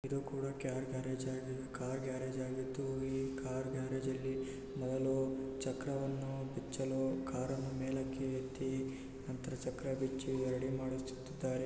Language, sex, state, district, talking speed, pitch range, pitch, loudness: Kannada, male, Karnataka, Raichur, 115 wpm, 130-135 Hz, 130 Hz, -40 LUFS